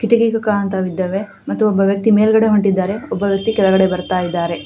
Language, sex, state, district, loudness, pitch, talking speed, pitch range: Kannada, female, Karnataka, Koppal, -16 LUFS, 200 Hz, 165 wpm, 190-215 Hz